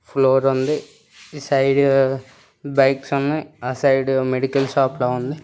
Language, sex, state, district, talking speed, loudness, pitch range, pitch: Telugu, male, Andhra Pradesh, Srikakulam, 130 wpm, -19 LUFS, 130-140 Hz, 135 Hz